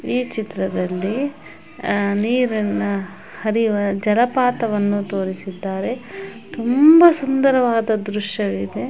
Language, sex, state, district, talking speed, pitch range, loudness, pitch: Kannada, female, Karnataka, Shimoga, 65 wpm, 195-245 Hz, -19 LUFS, 210 Hz